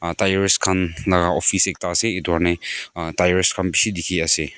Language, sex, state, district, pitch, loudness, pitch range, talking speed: Nagamese, male, Nagaland, Kohima, 90 Hz, -19 LUFS, 85-95 Hz, 170 wpm